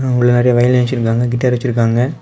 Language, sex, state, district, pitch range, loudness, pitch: Tamil, male, Tamil Nadu, Kanyakumari, 120-125 Hz, -14 LUFS, 125 Hz